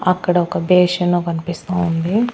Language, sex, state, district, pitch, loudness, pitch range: Telugu, female, Andhra Pradesh, Annamaya, 180 Hz, -17 LUFS, 170-185 Hz